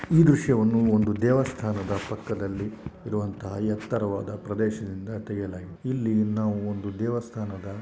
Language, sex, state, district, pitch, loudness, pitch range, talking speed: Kannada, male, Karnataka, Shimoga, 105 Hz, -27 LUFS, 100-115 Hz, 85 wpm